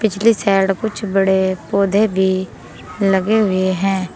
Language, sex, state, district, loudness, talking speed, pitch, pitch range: Hindi, female, Uttar Pradesh, Saharanpur, -16 LUFS, 130 wpm, 195 Hz, 190-210 Hz